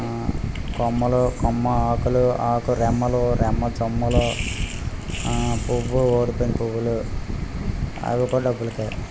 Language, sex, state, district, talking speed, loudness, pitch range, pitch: Telugu, male, Andhra Pradesh, Visakhapatnam, 100 wpm, -23 LUFS, 115-120 Hz, 120 Hz